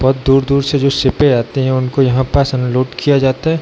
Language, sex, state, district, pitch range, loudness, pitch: Hindi, male, Bihar, Darbhanga, 130-140 Hz, -14 LUFS, 135 Hz